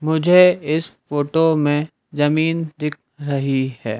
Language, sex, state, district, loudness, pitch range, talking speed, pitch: Hindi, male, Madhya Pradesh, Dhar, -18 LUFS, 145-160 Hz, 120 wpm, 150 Hz